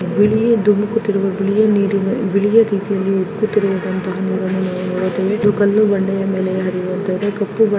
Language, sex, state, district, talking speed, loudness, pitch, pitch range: Kannada, female, Karnataka, Chamarajanagar, 140 wpm, -17 LUFS, 200 Hz, 190-210 Hz